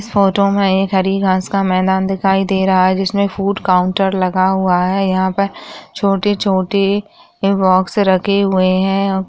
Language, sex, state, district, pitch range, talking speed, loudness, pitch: Hindi, female, Rajasthan, Churu, 185-200 Hz, 160 wpm, -15 LUFS, 195 Hz